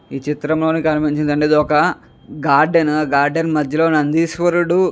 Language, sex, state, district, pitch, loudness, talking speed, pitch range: Telugu, male, Andhra Pradesh, Chittoor, 155 Hz, -16 LUFS, 120 wpm, 150-165 Hz